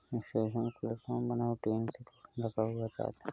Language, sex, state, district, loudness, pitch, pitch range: Hindi, male, Uttar Pradesh, Hamirpur, -36 LUFS, 115 Hz, 110-120 Hz